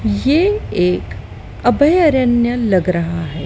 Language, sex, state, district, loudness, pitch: Hindi, female, Madhya Pradesh, Dhar, -15 LUFS, 205 Hz